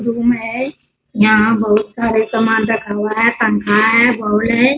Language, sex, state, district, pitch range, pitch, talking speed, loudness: Hindi, female, Bihar, Bhagalpur, 215-235 Hz, 225 Hz, 165 wpm, -14 LUFS